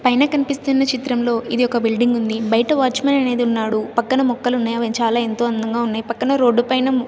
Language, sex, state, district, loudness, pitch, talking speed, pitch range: Telugu, female, Andhra Pradesh, Sri Satya Sai, -18 LUFS, 240 Hz, 180 wpm, 230-260 Hz